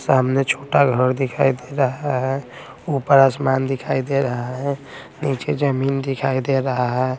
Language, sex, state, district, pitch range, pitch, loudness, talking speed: Hindi, male, Bihar, Patna, 130-140 Hz, 135 Hz, -20 LUFS, 150 wpm